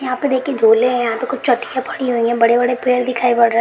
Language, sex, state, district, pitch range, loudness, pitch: Hindi, female, Jharkhand, Jamtara, 235-255 Hz, -16 LUFS, 245 Hz